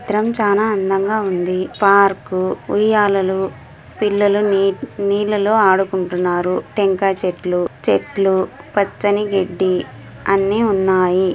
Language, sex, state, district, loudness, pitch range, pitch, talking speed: Telugu, female, Andhra Pradesh, Anantapur, -17 LUFS, 185-205 Hz, 195 Hz, 90 wpm